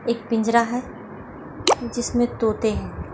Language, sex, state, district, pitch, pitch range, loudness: Hindi, female, Maharashtra, Pune, 235 Hz, 230-240 Hz, -22 LUFS